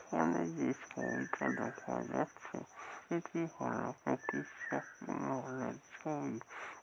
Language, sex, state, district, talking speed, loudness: Bengali, male, West Bengal, North 24 Parganas, 115 wpm, -40 LUFS